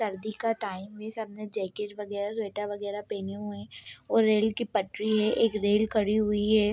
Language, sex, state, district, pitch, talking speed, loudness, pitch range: Hindi, female, Bihar, Saran, 210 Hz, 185 wpm, -29 LUFS, 205-215 Hz